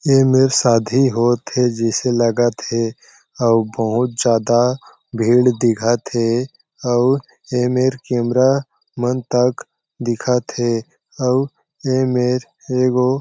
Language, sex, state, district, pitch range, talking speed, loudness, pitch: Chhattisgarhi, male, Chhattisgarh, Jashpur, 120-130 Hz, 120 wpm, -17 LUFS, 125 Hz